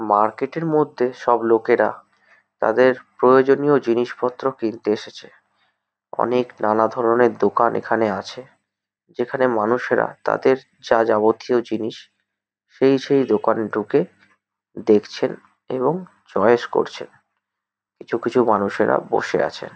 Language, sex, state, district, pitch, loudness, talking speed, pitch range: Bengali, male, West Bengal, Kolkata, 120 Hz, -20 LUFS, 105 wpm, 110-130 Hz